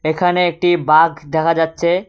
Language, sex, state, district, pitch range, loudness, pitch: Bengali, male, West Bengal, Cooch Behar, 160-175 Hz, -15 LUFS, 165 Hz